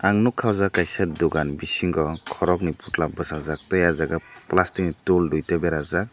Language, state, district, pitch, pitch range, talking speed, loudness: Kokborok, Tripura, Dhalai, 85 Hz, 80-90 Hz, 175 wpm, -23 LUFS